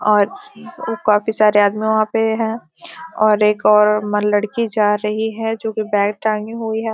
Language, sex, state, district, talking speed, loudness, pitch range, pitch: Hindi, female, Bihar, Gopalganj, 175 wpm, -17 LUFS, 210-225 Hz, 215 Hz